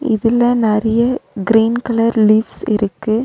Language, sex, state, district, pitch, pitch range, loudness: Tamil, female, Tamil Nadu, Nilgiris, 225 Hz, 215-235 Hz, -15 LUFS